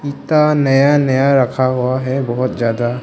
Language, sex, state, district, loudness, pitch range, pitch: Hindi, male, Arunachal Pradesh, Longding, -15 LUFS, 125-140 Hz, 130 Hz